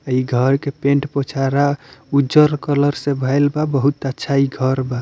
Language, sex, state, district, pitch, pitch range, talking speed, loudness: Bhojpuri, male, Bihar, Muzaffarpur, 140 Hz, 135-145 Hz, 180 wpm, -18 LUFS